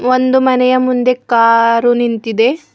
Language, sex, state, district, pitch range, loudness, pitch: Kannada, female, Karnataka, Bidar, 230-255 Hz, -12 LUFS, 250 Hz